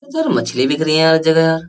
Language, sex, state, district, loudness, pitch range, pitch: Hindi, male, Uttar Pradesh, Jyotiba Phule Nagar, -14 LUFS, 155-160 Hz, 160 Hz